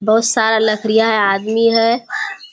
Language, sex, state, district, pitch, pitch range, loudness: Hindi, female, Bihar, Kishanganj, 220 Hz, 215-225 Hz, -15 LUFS